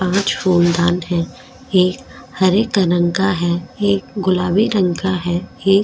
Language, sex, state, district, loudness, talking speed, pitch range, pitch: Hindi, female, Goa, North and South Goa, -17 LUFS, 165 wpm, 175-195 Hz, 185 Hz